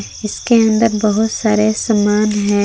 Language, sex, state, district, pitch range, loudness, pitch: Hindi, female, Jharkhand, Palamu, 205-220 Hz, -14 LUFS, 215 Hz